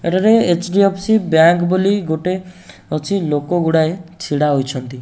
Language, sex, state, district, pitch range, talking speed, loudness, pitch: Odia, male, Odisha, Nuapada, 160-190 Hz, 95 wpm, -16 LUFS, 175 Hz